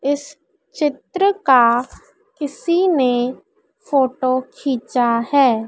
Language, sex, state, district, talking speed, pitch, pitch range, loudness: Hindi, female, Madhya Pradesh, Dhar, 85 wpm, 270 Hz, 250-295 Hz, -18 LUFS